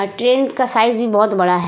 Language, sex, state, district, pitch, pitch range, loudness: Hindi, female, Uttar Pradesh, Budaun, 225 Hz, 195-250 Hz, -15 LUFS